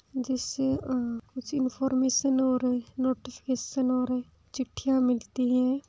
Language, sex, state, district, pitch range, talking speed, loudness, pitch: Hindi, female, Rajasthan, Churu, 250-265 Hz, 100 wpm, -28 LUFS, 255 Hz